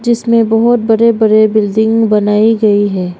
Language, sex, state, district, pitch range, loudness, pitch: Hindi, female, Arunachal Pradesh, Longding, 210-225 Hz, -10 LUFS, 220 Hz